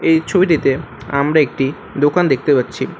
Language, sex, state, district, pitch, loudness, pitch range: Bengali, male, West Bengal, Alipurduar, 145 Hz, -16 LUFS, 135-165 Hz